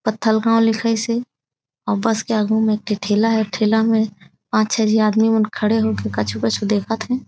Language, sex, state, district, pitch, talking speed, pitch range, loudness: Chhattisgarhi, female, Chhattisgarh, Raigarh, 220 Hz, 200 wpm, 205-225 Hz, -18 LUFS